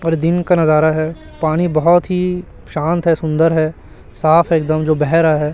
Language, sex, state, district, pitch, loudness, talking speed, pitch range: Hindi, male, Chhattisgarh, Raipur, 160 Hz, -15 LUFS, 215 wpm, 155-170 Hz